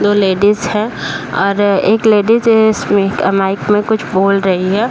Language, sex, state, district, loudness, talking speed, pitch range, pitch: Hindi, female, Uttar Pradesh, Deoria, -13 LUFS, 170 wpm, 195-215 Hz, 205 Hz